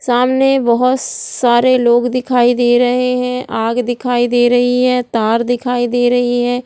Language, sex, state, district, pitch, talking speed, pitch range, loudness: Hindi, female, Bihar, Jahanabad, 245 Hz, 180 wpm, 245-250 Hz, -14 LUFS